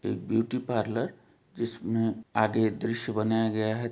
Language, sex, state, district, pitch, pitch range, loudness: Hindi, male, Jharkhand, Jamtara, 110 Hz, 110-115 Hz, -29 LUFS